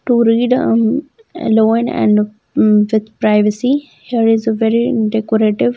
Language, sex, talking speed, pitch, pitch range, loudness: English, female, 135 wpm, 225 Hz, 215-240 Hz, -14 LUFS